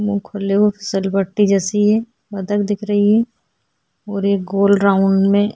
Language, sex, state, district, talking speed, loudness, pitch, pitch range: Hindi, female, Chhattisgarh, Korba, 150 wpm, -17 LUFS, 200 Hz, 195-205 Hz